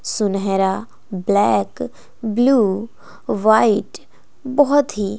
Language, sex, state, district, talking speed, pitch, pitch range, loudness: Hindi, female, Bihar, West Champaran, 70 wpm, 215 Hz, 200-240 Hz, -18 LUFS